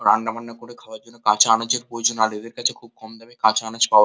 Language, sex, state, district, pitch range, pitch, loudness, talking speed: Bengali, male, West Bengal, Kolkata, 110-120 Hz, 115 Hz, -20 LUFS, 235 wpm